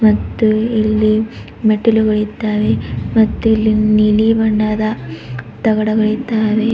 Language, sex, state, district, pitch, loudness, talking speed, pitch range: Kannada, female, Karnataka, Bidar, 215 Hz, -15 LUFS, 70 wpm, 215-220 Hz